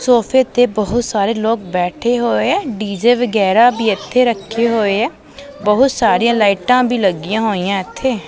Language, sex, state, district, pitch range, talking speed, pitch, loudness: Punjabi, female, Punjab, Pathankot, 200-245 Hz, 160 wpm, 230 Hz, -15 LUFS